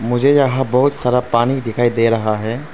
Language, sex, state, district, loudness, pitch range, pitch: Hindi, male, Arunachal Pradesh, Papum Pare, -16 LUFS, 115-135 Hz, 125 Hz